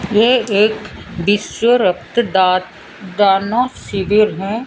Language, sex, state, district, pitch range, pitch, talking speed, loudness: Hindi, female, Odisha, Sambalpur, 195-225 Hz, 210 Hz, 75 wpm, -15 LUFS